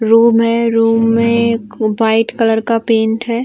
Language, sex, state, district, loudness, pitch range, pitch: Hindi, female, Uttar Pradesh, Varanasi, -13 LUFS, 225-230 Hz, 230 Hz